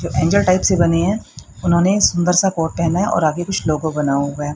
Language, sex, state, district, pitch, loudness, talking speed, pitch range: Hindi, female, Haryana, Rohtak, 170 Hz, -17 LUFS, 250 wpm, 155-185 Hz